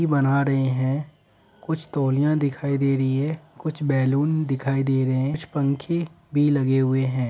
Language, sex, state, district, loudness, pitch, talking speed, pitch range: Hindi, male, Uttar Pradesh, Deoria, -23 LUFS, 140 Hz, 190 wpm, 135-150 Hz